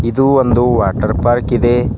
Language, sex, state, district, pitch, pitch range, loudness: Kannada, male, Karnataka, Bidar, 120 Hz, 115-120 Hz, -13 LUFS